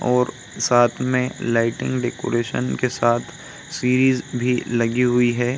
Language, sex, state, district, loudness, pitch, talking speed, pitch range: Hindi, male, Bihar, Samastipur, -20 LUFS, 125 Hz, 130 wpm, 120-125 Hz